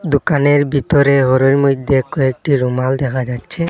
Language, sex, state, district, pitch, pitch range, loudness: Bengali, male, Assam, Hailakandi, 135 Hz, 130-145 Hz, -14 LUFS